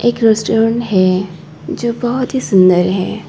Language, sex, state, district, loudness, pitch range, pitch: Hindi, female, Arunachal Pradesh, Papum Pare, -14 LUFS, 185-240 Hz, 220 Hz